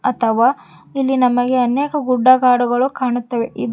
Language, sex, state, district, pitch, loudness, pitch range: Kannada, female, Karnataka, Koppal, 250 Hz, -16 LUFS, 240-260 Hz